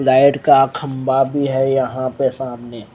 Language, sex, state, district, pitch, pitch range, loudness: Hindi, male, Chandigarh, Chandigarh, 135 Hz, 130-135 Hz, -16 LUFS